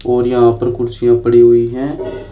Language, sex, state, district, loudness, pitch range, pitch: Hindi, male, Uttar Pradesh, Shamli, -12 LUFS, 120-125 Hz, 120 Hz